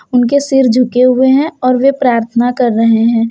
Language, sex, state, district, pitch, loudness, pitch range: Hindi, female, Jharkhand, Deoghar, 250 Hz, -11 LUFS, 235-260 Hz